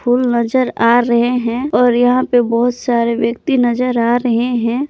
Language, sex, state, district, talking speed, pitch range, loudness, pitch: Hindi, male, Jharkhand, Palamu, 185 wpm, 235-250 Hz, -14 LUFS, 245 Hz